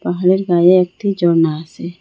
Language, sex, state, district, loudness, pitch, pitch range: Bengali, female, Assam, Hailakandi, -14 LUFS, 175 Hz, 170-185 Hz